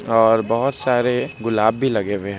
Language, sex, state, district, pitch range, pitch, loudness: Hindi, male, Bihar, Begusarai, 110-125 Hz, 115 Hz, -19 LUFS